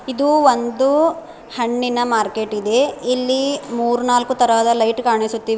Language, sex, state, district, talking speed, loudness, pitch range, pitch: Kannada, female, Karnataka, Bidar, 120 wpm, -17 LUFS, 230-260 Hz, 240 Hz